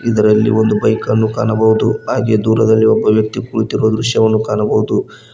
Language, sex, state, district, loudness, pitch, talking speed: Kannada, male, Karnataka, Koppal, -14 LUFS, 110 Hz, 125 wpm